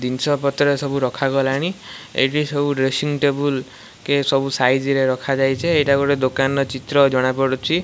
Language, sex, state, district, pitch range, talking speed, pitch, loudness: Odia, male, Odisha, Malkangiri, 130-145 Hz, 145 wpm, 135 Hz, -19 LUFS